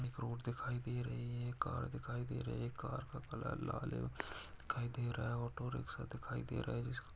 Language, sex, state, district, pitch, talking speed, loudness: Hindi, male, Jharkhand, Jamtara, 120 Hz, 200 wpm, -43 LUFS